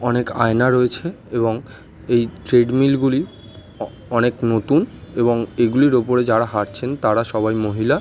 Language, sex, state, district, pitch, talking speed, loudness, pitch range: Bengali, male, West Bengal, North 24 Parganas, 120 Hz, 135 wpm, -18 LUFS, 110-125 Hz